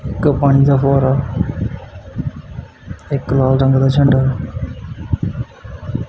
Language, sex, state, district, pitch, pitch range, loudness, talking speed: Punjabi, male, Punjab, Kapurthala, 135 Hz, 130-140 Hz, -16 LUFS, 100 wpm